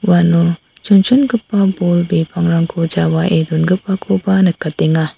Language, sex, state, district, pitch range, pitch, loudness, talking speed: Garo, female, Meghalaya, South Garo Hills, 165-195 Hz, 175 Hz, -14 LUFS, 80 wpm